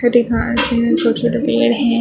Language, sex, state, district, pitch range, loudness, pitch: Hindi, female, Maharashtra, Gondia, 235-245 Hz, -15 LUFS, 240 Hz